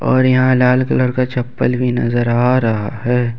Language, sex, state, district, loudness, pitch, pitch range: Hindi, male, Jharkhand, Ranchi, -15 LUFS, 125 Hz, 120-130 Hz